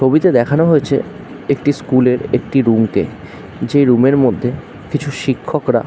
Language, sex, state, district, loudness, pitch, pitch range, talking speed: Bengali, male, West Bengal, Jhargram, -15 LUFS, 135 Hz, 125-145 Hz, 145 wpm